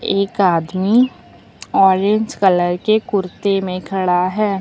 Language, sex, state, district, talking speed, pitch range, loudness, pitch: Hindi, female, Uttar Pradesh, Lucknow, 115 wpm, 185-205 Hz, -16 LUFS, 195 Hz